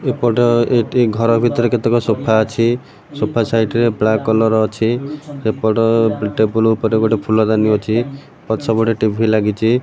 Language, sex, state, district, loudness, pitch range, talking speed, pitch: Odia, male, Odisha, Malkangiri, -16 LUFS, 110-120 Hz, 140 wpm, 115 Hz